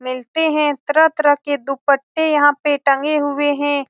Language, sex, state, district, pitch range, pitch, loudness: Hindi, female, Bihar, Saran, 280-300 Hz, 290 Hz, -17 LUFS